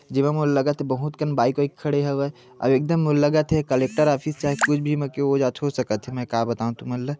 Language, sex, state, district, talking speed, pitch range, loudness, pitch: Chhattisgarhi, male, Chhattisgarh, Bilaspur, 235 wpm, 130-150 Hz, -23 LUFS, 140 Hz